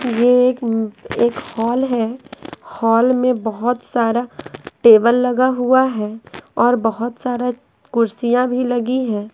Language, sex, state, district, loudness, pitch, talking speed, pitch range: Hindi, female, Bihar, Patna, -17 LUFS, 245 Hz, 130 wpm, 230-250 Hz